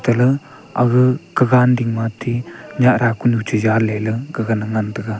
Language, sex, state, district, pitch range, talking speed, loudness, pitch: Wancho, male, Arunachal Pradesh, Longding, 110-125 Hz, 195 wpm, -17 LUFS, 120 Hz